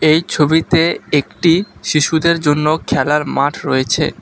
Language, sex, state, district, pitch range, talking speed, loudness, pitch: Bengali, male, West Bengal, Alipurduar, 150-165 Hz, 115 wpm, -15 LUFS, 155 Hz